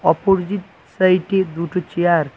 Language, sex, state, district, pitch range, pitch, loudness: Bengali, male, West Bengal, Cooch Behar, 170-190 Hz, 180 Hz, -18 LUFS